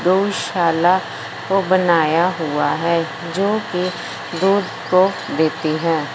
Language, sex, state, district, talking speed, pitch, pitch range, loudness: Hindi, female, Punjab, Fazilka, 105 wpm, 180 Hz, 165-190 Hz, -18 LUFS